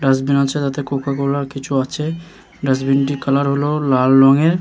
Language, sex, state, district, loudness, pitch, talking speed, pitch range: Bengali, male, West Bengal, Jalpaiguri, -17 LUFS, 140 Hz, 145 wpm, 135-145 Hz